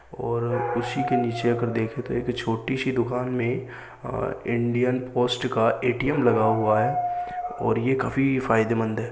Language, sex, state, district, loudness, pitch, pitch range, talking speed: Hindi, male, Uttar Pradesh, Muzaffarnagar, -24 LUFS, 125 Hz, 120-130 Hz, 165 wpm